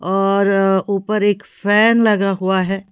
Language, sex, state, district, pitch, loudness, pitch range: Hindi, female, Haryana, Charkhi Dadri, 195 Hz, -16 LUFS, 195-205 Hz